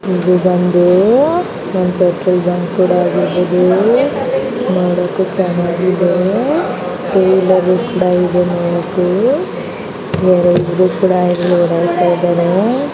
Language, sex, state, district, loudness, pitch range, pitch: Kannada, female, Karnataka, Belgaum, -13 LUFS, 180-185 Hz, 180 Hz